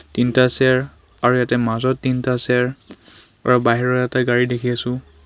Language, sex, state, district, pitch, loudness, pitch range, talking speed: Assamese, male, Assam, Kamrup Metropolitan, 125 Hz, -18 LUFS, 120-125 Hz, 150 wpm